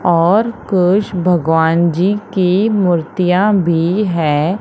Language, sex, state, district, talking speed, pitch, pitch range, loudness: Hindi, female, Madhya Pradesh, Umaria, 90 wpm, 180 Hz, 170-200 Hz, -14 LUFS